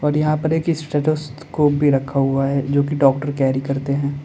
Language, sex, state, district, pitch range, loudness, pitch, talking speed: Hindi, male, Uttar Pradesh, Lalitpur, 135-150 Hz, -19 LUFS, 145 Hz, 200 wpm